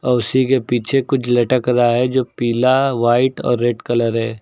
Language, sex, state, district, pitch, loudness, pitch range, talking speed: Hindi, male, Uttar Pradesh, Lucknow, 120 Hz, -16 LUFS, 120-130 Hz, 205 wpm